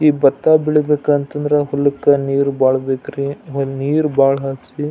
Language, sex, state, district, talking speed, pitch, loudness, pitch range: Kannada, male, Karnataka, Belgaum, 145 wpm, 140 Hz, -16 LUFS, 135-150 Hz